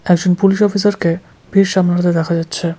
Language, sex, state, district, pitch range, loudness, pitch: Bengali, male, West Bengal, Cooch Behar, 170-195 Hz, -15 LUFS, 180 Hz